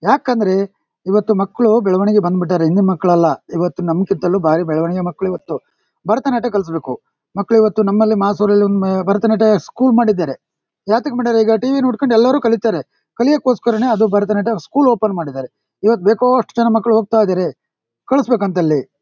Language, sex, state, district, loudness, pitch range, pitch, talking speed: Kannada, male, Karnataka, Shimoga, -15 LUFS, 185-230 Hz, 210 Hz, 140 wpm